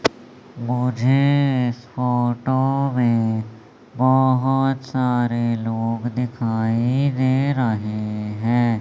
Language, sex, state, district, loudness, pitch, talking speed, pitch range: Hindi, male, Madhya Pradesh, Umaria, -20 LUFS, 125 Hz, 75 wpm, 115-130 Hz